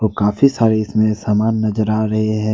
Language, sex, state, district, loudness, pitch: Hindi, male, Jharkhand, Ranchi, -16 LUFS, 110 Hz